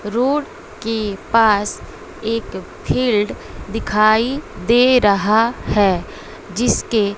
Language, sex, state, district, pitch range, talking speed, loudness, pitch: Hindi, female, Bihar, West Champaran, 205-235 Hz, 85 wpm, -17 LUFS, 220 Hz